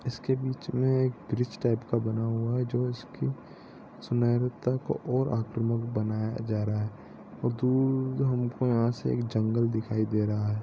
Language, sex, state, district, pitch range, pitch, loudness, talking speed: Hindi, male, Maharashtra, Nagpur, 110-125 Hz, 120 Hz, -29 LUFS, 180 wpm